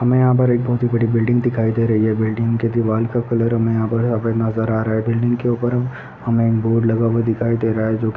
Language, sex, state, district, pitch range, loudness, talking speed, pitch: Hindi, male, Bihar, Purnia, 110-120 Hz, -18 LUFS, 295 wpm, 115 Hz